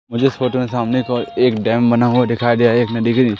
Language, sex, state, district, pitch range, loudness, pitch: Hindi, male, Madhya Pradesh, Katni, 115-125 Hz, -16 LUFS, 120 Hz